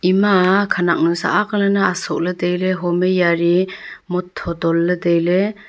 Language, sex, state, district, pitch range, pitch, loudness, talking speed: Wancho, female, Arunachal Pradesh, Longding, 175-190 Hz, 180 Hz, -17 LUFS, 150 wpm